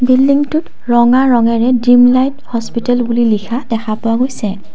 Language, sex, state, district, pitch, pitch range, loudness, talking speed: Assamese, female, Assam, Kamrup Metropolitan, 245 Hz, 230-255 Hz, -13 LUFS, 125 wpm